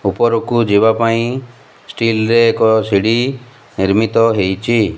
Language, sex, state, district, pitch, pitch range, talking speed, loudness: Odia, male, Odisha, Malkangiri, 115 Hz, 110-120 Hz, 110 wpm, -14 LUFS